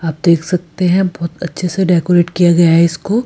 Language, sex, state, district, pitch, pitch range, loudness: Hindi, female, Rajasthan, Jaipur, 175 Hz, 170-180 Hz, -13 LUFS